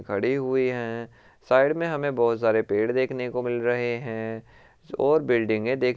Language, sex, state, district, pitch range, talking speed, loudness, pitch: Marwari, male, Rajasthan, Churu, 115-130 Hz, 180 wpm, -24 LUFS, 120 Hz